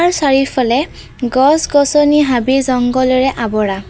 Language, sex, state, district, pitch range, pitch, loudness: Assamese, female, Assam, Kamrup Metropolitan, 245-285 Hz, 265 Hz, -13 LUFS